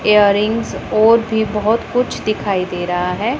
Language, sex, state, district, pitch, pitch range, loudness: Hindi, female, Punjab, Pathankot, 215 Hz, 200-225 Hz, -16 LUFS